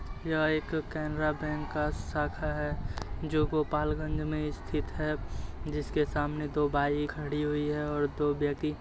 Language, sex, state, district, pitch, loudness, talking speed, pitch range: Hindi, male, Uttar Pradesh, Muzaffarnagar, 150 Hz, -32 LUFS, 155 wpm, 145-155 Hz